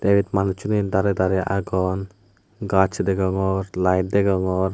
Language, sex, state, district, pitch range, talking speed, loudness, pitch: Chakma, male, Tripura, West Tripura, 95-100 Hz, 125 wpm, -21 LUFS, 95 Hz